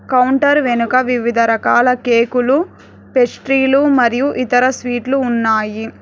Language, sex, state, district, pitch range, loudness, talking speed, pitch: Telugu, female, Telangana, Hyderabad, 235-265 Hz, -14 LUFS, 100 wpm, 250 Hz